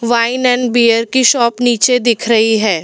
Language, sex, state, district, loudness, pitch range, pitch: Hindi, female, Delhi, New Delhi, -12 LUFS, 230-245 Hz, 235 Hz